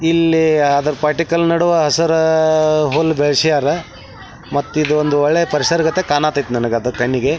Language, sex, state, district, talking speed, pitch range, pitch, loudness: Kannada, male, Karnataka, Belgaum, 120 wpm, 145-160 Hz, 150 Hz, -15 LUFS